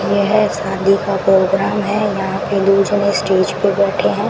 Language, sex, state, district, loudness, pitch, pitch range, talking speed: Hindi, female, Rajasthan, Bikaner, -15 LUFS, 195 Hz, 195-200 Hz, 195 wpm